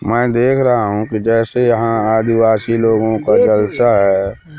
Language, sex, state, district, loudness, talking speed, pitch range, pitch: Hindi, male, Madhya Pradesh, Katni, -14 LUFS, 155 wpm, 110-120 Hz, 115 Hz